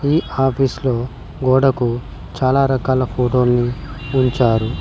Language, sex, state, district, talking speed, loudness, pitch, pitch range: Telugu, male, Telangana, Mahabubabad, 100 wpm, -17 LUFS, 130 Hz, 120-135 Hz